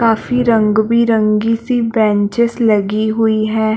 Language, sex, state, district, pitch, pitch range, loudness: Hindi, female, Chhattisgarh, Balrampur, 220 Hz, 215-230 Hz, -14 LUFS